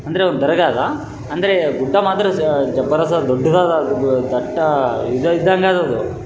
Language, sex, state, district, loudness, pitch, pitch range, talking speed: Kannada, male, Karnataka, Raichur, -16 LUFS, 160 Hz, 130-185 Hz, 145 wpm